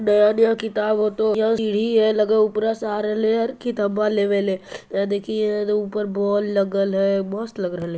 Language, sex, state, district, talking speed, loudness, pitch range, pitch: Magahi, male, Bihar, Jamui, 220 wpm, -21 LUFS, 200-220 Hz, 210 Hz